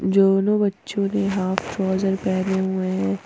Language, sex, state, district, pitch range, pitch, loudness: Hindi, female, Jharkhand, Ranchi, 190-195 Hz, 190 Hz, -22 LUFS